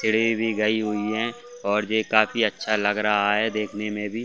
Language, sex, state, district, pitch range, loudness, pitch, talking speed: Hindi, male, Chhattisgarh, Bastar, 105-110 Hz, -23 LUFS, 110 Hz, 225 wpm